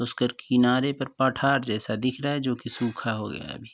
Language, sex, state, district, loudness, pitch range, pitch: Hindi, male, Uttar Pradesh, Varanasi, -26 LUFS, 120-135 Hz, 125 Hz